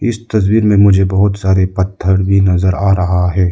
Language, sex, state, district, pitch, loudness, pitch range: Hindi, male, Arunachal Pradesh, Lower Dibang Valley, 95 Hz, -12 LUFS, 95-100 Hz